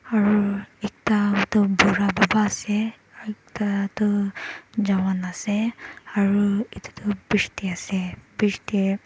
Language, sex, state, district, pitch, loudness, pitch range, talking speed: Nagamese, male, Nagaland, Dimapur, 205 Hz, -23 LUFS, 200-210 Hz, 120 wpm